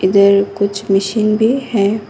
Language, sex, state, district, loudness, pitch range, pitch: Hindi, female, Karnataka, Koppal, -14 LUFS, 200-215 Hz, 200 Hz